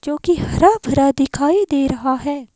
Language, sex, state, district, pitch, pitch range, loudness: Hindi, female, Himachal Pradesh, Shimla, 285 Hz, 275-335 Hz, -17 LUFS